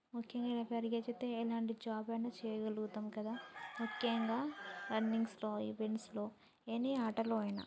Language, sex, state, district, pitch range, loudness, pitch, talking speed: Telugu, female, Telangana, Nalgonda, 215-235 Hz, -41 LUFS, 225 Hz, 100 wpm